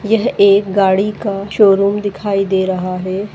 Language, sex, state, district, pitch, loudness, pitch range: Hindi, female, Goa, North and South Goa, 200 Hz, -14 LUFS, 190-205 Hz